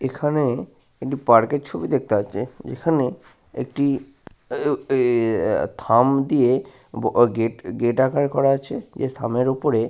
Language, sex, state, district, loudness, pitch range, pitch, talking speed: Bengali, male, West Bengal, Paschim Medinipur, -21 LUFS, 120-135 Hz, 130 Hz, 140 wpm